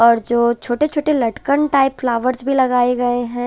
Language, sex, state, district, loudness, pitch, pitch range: Hindi, female, Chhattisgarh, Raipur, -17 LUFS, 245 Hz, 240-275 Hz